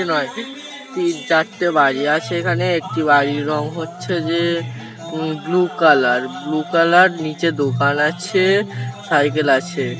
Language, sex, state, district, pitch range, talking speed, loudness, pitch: Bengali, male, West Bengal, Paschim Medinipur, 145-175 Hz, 130 wpm, -18 LUFS, 160 Hz